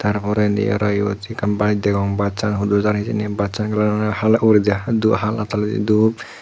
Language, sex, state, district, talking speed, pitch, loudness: Chakma, male, Tripura, Unakoti, 175 wpm, 105 Hz, -19 LUFS